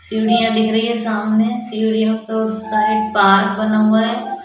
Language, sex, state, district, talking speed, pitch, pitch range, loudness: Hindi, female, Goa, North and South Goa, 175 wpm, 220 Hz, 215-225 Hz, -16 LUFS